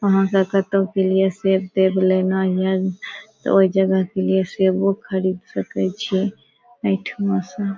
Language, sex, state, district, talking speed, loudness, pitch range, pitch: Maithili, female, Bihar, Saharsa, 155 wpm, -20 LUFS, 190-195 Hz, 190 Hz